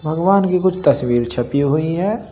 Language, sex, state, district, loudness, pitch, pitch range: Hindi, male, Uttar Pradesh, Shamli, -17 LUFS, 160 Hz, 140-185 Hz